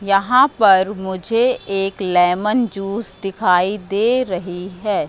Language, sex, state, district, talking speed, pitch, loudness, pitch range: Hindi, female, Madhya Pradesh, Katni, 120 wpm, 195 Hz, -17 LUFS, 185-220 Hz